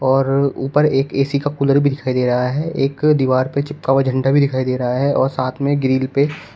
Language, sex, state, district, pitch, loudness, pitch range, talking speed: Hindi, male, Uttar Pradesh, Shamli, 135 Hz, -17 LUFS, 130-140 Hz, 245 wpm